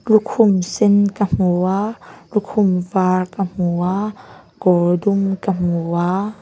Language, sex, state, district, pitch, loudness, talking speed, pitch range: Mizo, female, Mizoram, Aizawl, 190 Hz, -18 LUFS, 140 wpm, 180-205 Hz